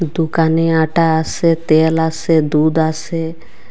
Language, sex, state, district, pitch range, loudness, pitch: Bengali, female, Assam, Hailakandi, 160-165 Hz, -15 LUFS, 160 Hz